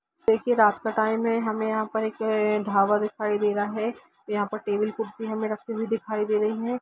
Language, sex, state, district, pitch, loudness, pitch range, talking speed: Hindi, female, Jharkhand, Jamtara, 215 Hz, -26 LUFS, 210-225 Hz, 210 wpm